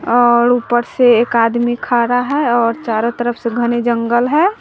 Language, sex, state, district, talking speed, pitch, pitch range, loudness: Hindi, female, Bihar, West Champaran, 195 wpm, 240 Hz, 235-245 Hz, -14 LUFS